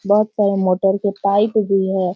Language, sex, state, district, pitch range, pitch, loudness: Hindi, female, Bihar, Sitamarhi, 190-205 Hz, 200 Hz, -17 LUFS